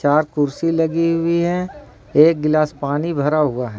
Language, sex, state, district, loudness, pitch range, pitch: Hindi, male, Jharkhand, Ranchi, -18 LUFS, 145-165 Hz, 155 Hz